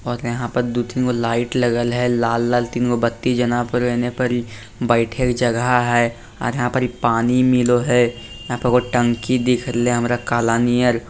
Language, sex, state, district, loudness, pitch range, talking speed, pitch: Maithili, male, Bihar, Lakhisarai, -19 LUFS, 120-125 Hz, 185 wpm, 120 Hz